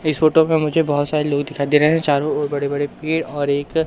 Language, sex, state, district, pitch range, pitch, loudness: Hindi, male, Madhya Pradesh, Umaria, 145-160 Hz, 150 Hz, -18 LUFS